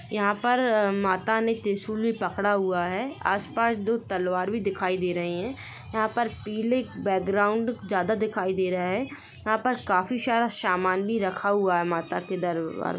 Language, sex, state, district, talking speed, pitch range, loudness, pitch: Hindi, female, Jharkhand, Sahebganj, 170 wpm, 185-225 Hz, -26 LUFS, 200 Hz